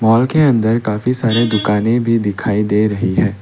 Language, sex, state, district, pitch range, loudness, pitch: Hindi, male, Assam, Kamrup Metropolitan, 105-115 Hz, -15 LUFS, 110 Hz